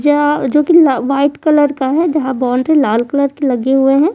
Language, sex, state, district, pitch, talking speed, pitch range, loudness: Hindi, female, Bihar, Kaimur, 285 Hz, 230 wpm, 265-300 Hz, -13 LUFS